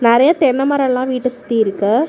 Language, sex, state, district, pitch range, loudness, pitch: Tamil, female, Tamil Nadu, Namakkal, 235-275 Hz, -15 LUFS, 255 Hz